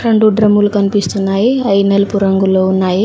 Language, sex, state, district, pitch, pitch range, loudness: Telugu, female, Telangana, Mahabubabad, 200 Hz, 195-210 Hz, -12 LUFS